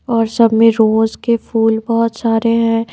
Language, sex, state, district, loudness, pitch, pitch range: Hindi, female, Bihar, Patna, -14 LUFS, 230 Hz, 225-230 Hz